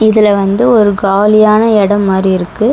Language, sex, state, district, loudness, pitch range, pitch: Tamil, female, Tamil Nadu, Chennai, -9 LUFS, 195-220 Hz, 205 Hz